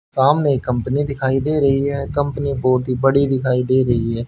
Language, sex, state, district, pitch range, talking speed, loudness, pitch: Hindi, male, Haryana, Rohtak, 125-140 Hz, 195 wpm, -18 LUFS, 135 Hz